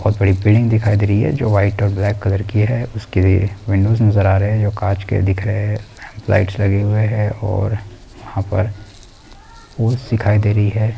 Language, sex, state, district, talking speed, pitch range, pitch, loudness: Hindi, male, Uttar Pradesh, Etah, 200 wpm, 100-110 Hz, 105 Hz, -17 LUFS